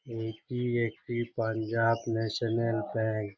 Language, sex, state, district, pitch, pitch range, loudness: Bengali, male, West Bengal, Jhargram, 115 Hz, 110-115 Hz, -31 LUFS